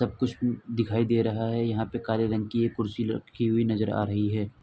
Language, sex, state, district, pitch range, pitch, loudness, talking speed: Hindi, male, Uttar Pradesh, Etah, 110-115 Hz, 115 Hz, -28 LUFS, 245 wpm